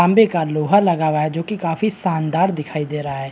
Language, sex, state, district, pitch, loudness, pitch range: Hindi, male, Bihar, Kishanganj, 165 Hz, -19 LUFS, 150-190 Hz